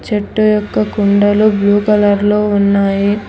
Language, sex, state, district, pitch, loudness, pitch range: Telugu, female, Telangana, Hyderabad, 205 Hz, -12 LUFS, 200-210 Hz